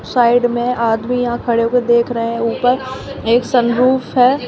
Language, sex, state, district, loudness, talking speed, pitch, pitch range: Hindi, female, Uttar Pradesh, Shamli, -15 LUFS, 175 wpm, 240 Hz, 235-250 Hz